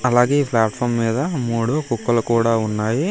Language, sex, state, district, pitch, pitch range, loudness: Telugu, male, Andhra Pradesh, Guntur, 120 Hz, 115-135 Hz, -19 LUFS